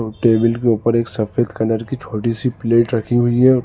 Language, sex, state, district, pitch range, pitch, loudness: Hindi, male, Uttar Pradesh, Lalitpur, 115-120 Hz, 115 Hz, -17 LUFS